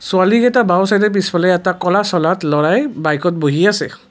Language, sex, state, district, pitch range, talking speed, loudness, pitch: Assamese, male, Assam, Kamrup Metropolitan, 175-205 Hz, 130 wpm, -14 LUFS, 185 Hz